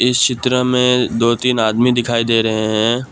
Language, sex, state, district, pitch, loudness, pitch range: Hindi, male, Assam, Kamrup Metropolitan, 120 Hz, -15 LUFS, 115-125 Hz